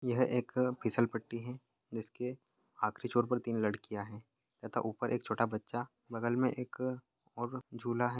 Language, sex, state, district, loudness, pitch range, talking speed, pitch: Hindi, male, Chhattisgarh, Bastar, -37 LUFS, 115-125 Hz, 170 wpm, 120 Hz